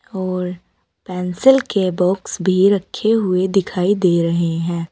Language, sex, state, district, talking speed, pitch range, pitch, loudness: Hindi, female, Uttar Pradesh, Saharanpur, 135 wpm, 180-195 Hz, 185 Hz, -17 LUFS